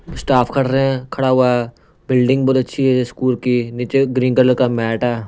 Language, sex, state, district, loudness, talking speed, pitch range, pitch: Hindi, male, Punjab, Pathankot, -16 LUFS, 215 wpm, 120-130 Hz, 125 Hz